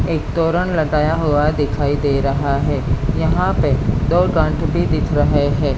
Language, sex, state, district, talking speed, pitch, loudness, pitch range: Hindi, female, Maharashtra, Mumbai Suburban, 165 wpm, 145 Hz, -17 LUFS, 140-160 Hz